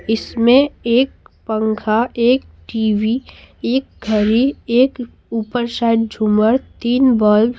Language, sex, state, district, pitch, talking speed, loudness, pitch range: Hindi, female, Bihar, Patna, 235 Hz, 110 wpm, -17 LUFS, 220-250 Hz